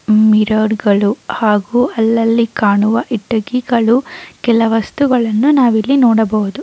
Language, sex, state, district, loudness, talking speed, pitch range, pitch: Kannada, female, Karnataka, Chamarajanagar, -13 LUFS, 110 wpm, 215-250 Hz, 225 Hz